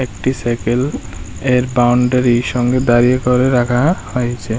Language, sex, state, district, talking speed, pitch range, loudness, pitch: Bengali, male, Tripura, West Tripura, 115 wpm, 120-125 Hz, -15 LUFS, 125 Hz